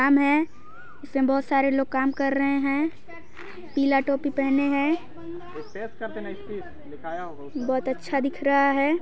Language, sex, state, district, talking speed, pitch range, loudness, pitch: Hindi, female, Chhattisgarh, Sarguja, 115 wpm, 260-290 Hz, -24 LUFS, 275 Hz